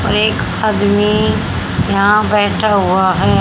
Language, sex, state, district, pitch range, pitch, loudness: Hindi, male, Haryana, Jhajjar, 195-210 Hz, 205 Hz, -13 LUFS